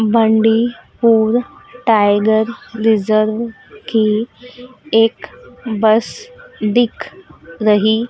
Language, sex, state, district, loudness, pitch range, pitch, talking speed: Hindi, female, Madhya Pradesh, Dhar, -15 LUFS, 215-240 Hz, 225 Hz, 60 wpm